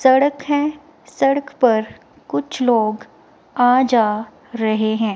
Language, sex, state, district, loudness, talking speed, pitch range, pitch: Hindi, female, Himachal Pradesh, Shimla, -18 LUFS, 115 wpm, 220-275 Hz, 245 Hz